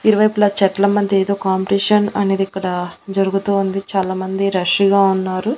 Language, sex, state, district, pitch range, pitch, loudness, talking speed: Telugu, female, Andhra Pradesh, Annamaya, 190-200 Hz, 195 Hz, -17 LUFS, 140 wpm